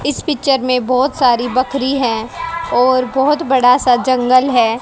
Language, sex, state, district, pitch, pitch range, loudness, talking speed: Hindi, female, Haryana, Jhajjar, 255 Hz, 245-270 Hz, -14 LUFS, 160 wpm